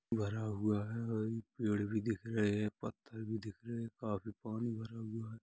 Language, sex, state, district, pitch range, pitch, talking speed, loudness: Hindi, male, Uttar Pradesh, Hamirpur, 105-115 Hz, 110 Hz, 200 wpm, -39 LUFS